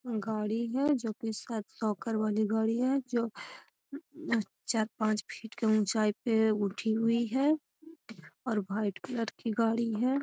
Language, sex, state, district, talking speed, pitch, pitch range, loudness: Magahi, female, Bihar, Gaya, 145 wpm, 225 Hz, 215-245 Hz, -31 LUFS